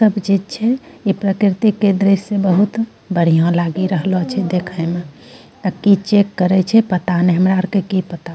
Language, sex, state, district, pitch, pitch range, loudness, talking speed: Angika, female, Bihar, Bhagalpur, 190 Hz, 180-205 Hz, -16 LUFS, 185 wpm